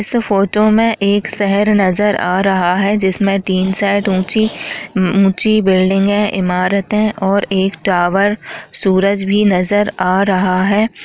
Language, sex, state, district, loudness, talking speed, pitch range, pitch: Chhattisgarhi, female, Chhattisgarh, Jashpur, -13 LUFS, 135 wpm, 190-205 Hz, 200 Hz